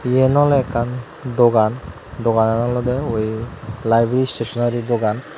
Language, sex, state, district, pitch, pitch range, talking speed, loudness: Chakma, male, Tripura, Dhalai, 120 Hz, 115-125 Hz, 110 wpm, -18 LUFS